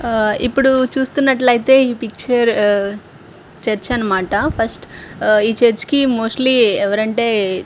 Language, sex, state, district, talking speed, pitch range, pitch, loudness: Telugu, female, Andhra Pradesh, Srikakulam, 115 wpm, 215-260 Hz, 235 Hz, -15 LUFS